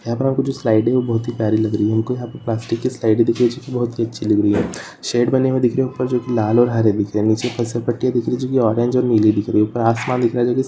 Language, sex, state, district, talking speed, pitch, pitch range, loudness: Hindi, female, Rajasthan, Churu, 360 wpm, 120 Hz, 110-125 Hz, -18 LUFS